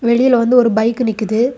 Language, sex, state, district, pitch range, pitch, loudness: Tamil, female, Tamil Nadu, Kanyakumari, 225-250 Hz, 235 Hz, -14 LUFS